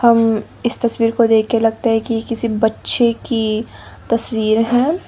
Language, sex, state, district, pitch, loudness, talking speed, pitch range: Hindi, female, Nagaland, Dimapur, 230 Hz, -17 LUFS, 165 wpm, 225-235 Hz